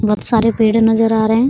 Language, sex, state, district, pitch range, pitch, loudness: Hindi, female, Bihar, Araria, 220-225 Hz, 225 Hz, -14 LUFS